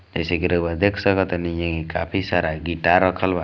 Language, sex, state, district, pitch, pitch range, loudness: Hindi, male, Bihar, East Champaran, 85 Hz, 85-95 Hz, -21 LUFS